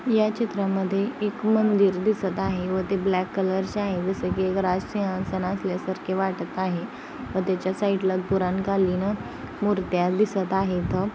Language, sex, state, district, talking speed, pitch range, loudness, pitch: Marathi, female, Maharashtra, Sindhudurg, 160 wpm, 185-205 Hz, -25 LUFS, 190 Hz